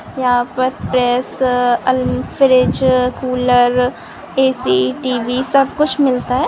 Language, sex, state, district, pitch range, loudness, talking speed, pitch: Hindi, female, Rajasthan, Nagaur, 245-260 Hz, -15 LUFS, 100 wpm, 255 Hz